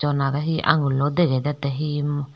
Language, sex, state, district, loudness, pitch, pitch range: Chakma, female, Tripura, Dhalai, -22 LUFS, 145 Hz, 140-150 Hz